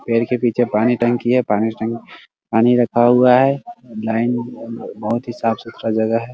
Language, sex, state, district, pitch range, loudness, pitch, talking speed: Hindi, male, Bihar, Muzaffarpur, 115-120 Hz, -17 LUFS, 120 Hz, 200 wpm